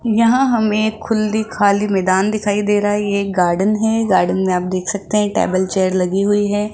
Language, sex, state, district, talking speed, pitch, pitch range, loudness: Hindi, female, Rajasthan, Jaipur, 225 wpm, 205 Hz, 190-215 Hz, -16 LUFS